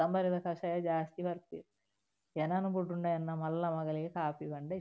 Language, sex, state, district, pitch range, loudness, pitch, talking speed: Tulu, female, Karnataka, Dakshina Kannada, 155-175 Hz, -36 LUFS, 165 Hz, 150 wpm